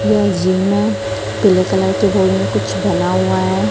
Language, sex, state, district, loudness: Hindi, female, Chhattisgarh, Raipur, -15 LUFS